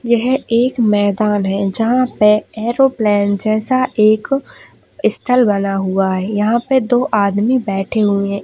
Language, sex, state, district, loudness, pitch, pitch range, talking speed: Hindi, female, Bihar, Lakhisarai, -15 LUFS, 215 Hz, 200-245 Hz, 140 wpm